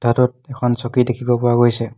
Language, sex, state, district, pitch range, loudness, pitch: Assamese, male, Assam, Hailakandi, 120-125 Hz, -18 LUFS, 120 Hz